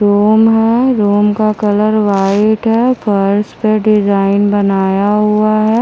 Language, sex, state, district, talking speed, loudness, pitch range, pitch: Hindi, female, Himachal Pradesh, Shimla, 135 wpm, -12 LUFS, 205-215 Hz, 210 Hz